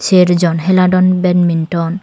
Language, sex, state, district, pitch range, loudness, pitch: Chakma, female, Tripura, Dhalai, 170-185 Hz, -12 LUFS, 180 Hz